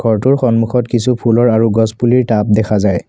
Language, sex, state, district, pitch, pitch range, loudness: Assamese, male, Assam, Kamrup Metropolitan, 115 Hz, 110-125 Hz, -13 LUFS